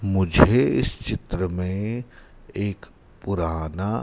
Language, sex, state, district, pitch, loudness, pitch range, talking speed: Hindi, male, Madhya Pradesh, Dhar, 95 Hz, -23 LUFS, 90-100 Hz, 90 wpm